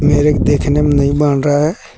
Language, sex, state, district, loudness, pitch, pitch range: Hindi, male, Jharkhand, Deoghar, -13 LUFS, 145 Hz, 145-150 Hz